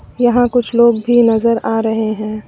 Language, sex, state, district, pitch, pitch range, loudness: Hindi, female, Uttar Pradesh, Lucknow, 230 Hz, 220-240 Hz, -13 LUFS